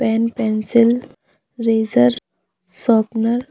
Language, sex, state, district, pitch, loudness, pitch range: Hindi, female, Chhattisgarh, Bilaspur, 225 Hz, -17 LUFS, 215-235 Hz